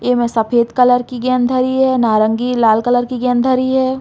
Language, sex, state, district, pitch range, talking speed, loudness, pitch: Bundeli, female, Uttar Pradesh, Hamirpur, 235-255 Hz, 225 wpm, -14 LUFS, 250 Hz